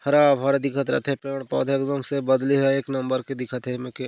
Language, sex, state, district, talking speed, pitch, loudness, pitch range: Chhattisgarhi, male, Chhattisgarh, Korba, 235 wpm, 135 Hz, -23 LUFS, 130-140 Hz